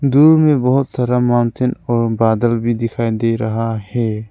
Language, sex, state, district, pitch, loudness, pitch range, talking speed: Hindi, male, Arunachal Pradesh, Lower Dibang Valley, 120 Hz, -16 LUFS, 115-125 Hz, 165 wpm